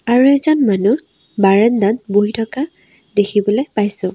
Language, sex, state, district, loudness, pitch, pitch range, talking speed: Assamese, female, Assam, Sonitpur, -15 LUFS, 210 Hz, 205-255 Hz, 115 wpm